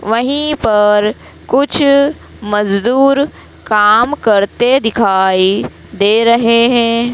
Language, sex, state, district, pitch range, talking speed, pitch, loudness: Hindi, female, Madhya Pradesh, Dhar, 210-265 Hz, 85 wpm, 230 Hz, -12 LUFS